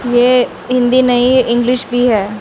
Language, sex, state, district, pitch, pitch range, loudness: Hindi, female, Chandigarh, Chandigarh, 245 Hz, 240-250 Hz, -12 LUFS